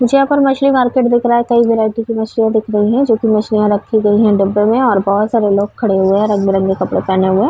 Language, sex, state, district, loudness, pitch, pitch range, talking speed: Hindi, female, Uttar Pradesh, Varanasi, -13 LUFS, 220 Hz, 205-235 Hz, 265 wpm